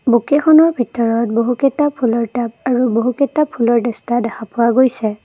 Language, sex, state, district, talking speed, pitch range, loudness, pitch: Assamese, female, Assam, Kamrup Metropolitan, 115 wpm, 230-260 Hz, -15 LUFS, 240 Hz